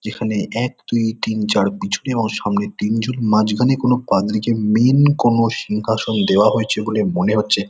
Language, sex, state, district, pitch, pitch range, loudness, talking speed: Bengali, male, West Bengal, Kolkata, 110 Hz, 105-120 Hz, -18 LUFS, 165 wpm